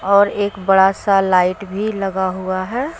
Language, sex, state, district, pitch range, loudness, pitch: Hindi, female, Jharkhand, Deoghar, 185-205 Hz, -17 LUFS, 195 Hz